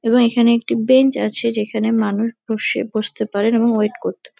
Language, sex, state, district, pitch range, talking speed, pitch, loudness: Bengali, female, West Bengal, North 24 Parganas, 215-235 Hz, 190 wpm, 225 Hz, -18 LUFS